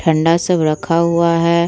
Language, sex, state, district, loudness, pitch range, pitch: Hindi, female, Bihar, Vaishali, -15 LUFS, 165-170 Hz, 170 Hz